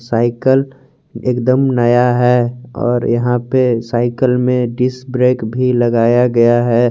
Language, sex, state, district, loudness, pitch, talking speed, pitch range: Hindi, male, Jharkhand, Garhwa, -14 LUFS, 125 Hz, 140 wpm, 120-125 Hz